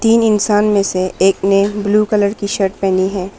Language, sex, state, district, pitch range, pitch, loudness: Hindi, female, Arunachal Pradesh, Papum Pare, 195-210 Hz, 200 Hz, -14 LUFS